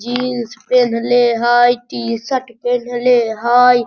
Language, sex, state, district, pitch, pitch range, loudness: Hindi, female, Bihar, Sitamarhi, 245 Hz, 235-245 Hz, -15 LUFS